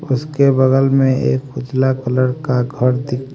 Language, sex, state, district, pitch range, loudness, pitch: Hindi, male, Haryana, Rohtak, 130-135 Hz, -16 LUFS, 130 Hz